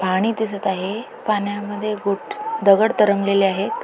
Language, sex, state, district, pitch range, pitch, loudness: Marathi, female, Maharashtra, Pune, 200-220 Hz, 205 Hz, -20 LUFS